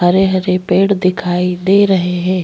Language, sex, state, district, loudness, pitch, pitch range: Hindi, female, Chhattisgarh, Bastar, -14 LUFS, 185 Hz, 180-190 Hz